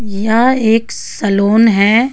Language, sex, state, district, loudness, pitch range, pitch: Hindi, female, Jharkhand, Ranchi, -12 LUFS, 205-230 Hz, 220 Hz